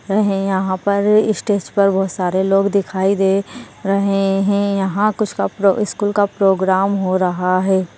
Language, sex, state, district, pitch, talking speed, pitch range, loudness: Hindi, female, Maharashtra, Solapur, 195 Hz, 160 wpm, 190-200 Hz, -17 LUFS